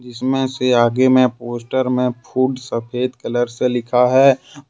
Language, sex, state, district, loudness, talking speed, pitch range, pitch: Hindi, male, Jharkhand, Ranchi, -17 LUFS, 165 wpm, 120-130 Hz, 125 Hz